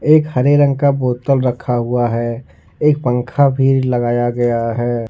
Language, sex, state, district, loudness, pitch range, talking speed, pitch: Hindi, male, Jharkhand, Ranchi, -15 LUFS, 120-140 Hz, 165 wpm, 125 Hz